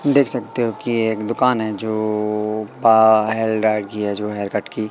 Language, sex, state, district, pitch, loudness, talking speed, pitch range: Hindi, male, Madhya Pradesh, Katni, 110 Hz, -18 LUFS, 185 wpm, 105-115 Hz